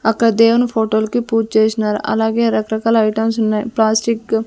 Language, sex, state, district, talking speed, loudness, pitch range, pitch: Telugu, female, Andhra Pradesh, Sri Satya Sai, 160 wpm, -16 LUFS, 220-230 Hz, 220 Hz